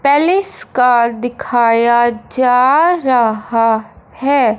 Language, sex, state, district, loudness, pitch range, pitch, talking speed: Hindi, male, Punjab, Fazilka, -13 LUFS, 235-275 Hz, 245 Hz, 80 wpm